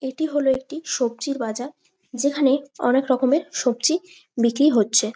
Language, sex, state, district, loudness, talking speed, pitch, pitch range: Bengali, female, West Bengal, Jalpaiguri, -21 LUFS, 140 wpm, 270 Hz, 250-310 Hz